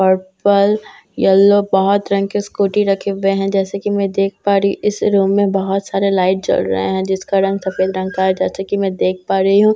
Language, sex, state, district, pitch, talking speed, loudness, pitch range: Hindi, female, Bihar, Katihar, 195 Hz, 235 wpm, -16 LUFS, 190-200 Hz